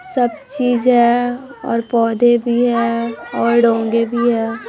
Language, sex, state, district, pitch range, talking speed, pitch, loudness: Hindi, female, Chhattisgarh, Raipur, 230-245 Hz, 140 wpm, 235 Hz, -16 LUFS